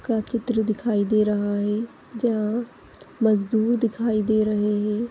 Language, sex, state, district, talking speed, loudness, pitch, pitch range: Hindi, female, Chhattisgarh, Rajnandgaon, 140 wpm, -23 LUFS, 220 Hz, 210-235 Hz